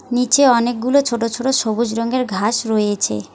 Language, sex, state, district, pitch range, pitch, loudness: Bengali, female, West Bengal, Alipurduar, 220-250 Hz, 235 Hz, -17 LUFS